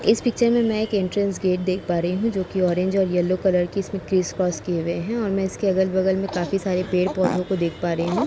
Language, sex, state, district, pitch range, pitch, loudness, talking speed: Hindi, female, Uttar Pradesh, Etah, 180-195 Hz, 190 Hz, -22 LUFS, 275 wpm